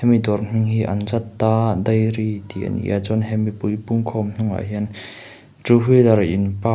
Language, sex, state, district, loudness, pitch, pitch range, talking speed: Mizo, male, Mizoram, Aizawl, -19 LUFS, 110 Hz, 105-115 Hz, 195 wpm